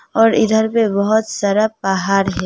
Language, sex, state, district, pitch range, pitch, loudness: Hindi, female, Uttar Pradesh, Hamirpur, 195-220 Hz, 215 Hz, -16 LUFS